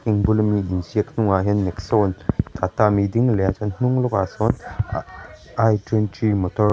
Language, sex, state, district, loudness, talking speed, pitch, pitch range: Mizo, male, Mizoram, Aizawl, -21 LUFS, 180 wpm, 105 Hz, 100-110 Hz